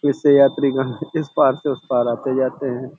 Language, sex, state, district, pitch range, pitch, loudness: Hindi, male, Uttar Pradesh, Hamirpur, 130-145 Hz, 135 Hz, -19 LUFS